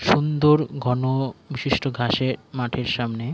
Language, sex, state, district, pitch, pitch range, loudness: Bengali, male, West Bengal, Jhargram, 130 Hz, 120-140 Hz, -23 LUFS